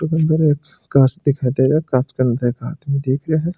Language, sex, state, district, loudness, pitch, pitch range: Marwari, male, Rajasthan, Churu, -18 LUFS, 140 Hz, 130-160 Hz